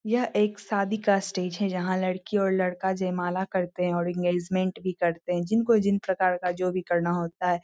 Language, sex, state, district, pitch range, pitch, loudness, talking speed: Hindi, female, Bihar, Lakhisarai, 180-200 Hz, 185 Hz, -26 LUFS, 210 wpm